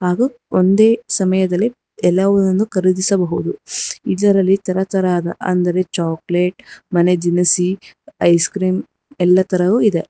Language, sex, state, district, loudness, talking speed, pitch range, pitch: Kannada, female, Karnataka, Bangalore, -16 LUFS, 95 wpm, 180-200 Hz, 185 Hz